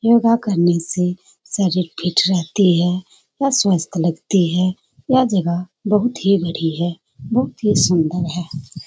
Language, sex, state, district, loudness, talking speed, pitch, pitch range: Hindi, female, Bihar, Jamui, -18 LUFS, 140 wpm, 180 Hz, 170-205 Hz